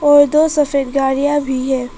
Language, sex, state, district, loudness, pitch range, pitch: Hindi, female, Arunachal Pradesh, Papum Pare, -15 LUFS, 265-290 Hz, 280 Hz